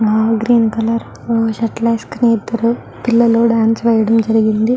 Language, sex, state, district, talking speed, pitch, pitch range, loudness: Telugu, female, Andhra Pradesh, Guntur, 140 wpm, 230 Hz, 225-235 Hz, -15 LUFS